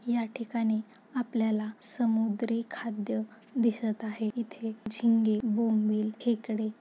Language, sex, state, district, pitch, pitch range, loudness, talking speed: Marathi, female, Maharashtra, Nagpur, 225 Hz, 220-230 Hz, -30 LUFS, 95 wpm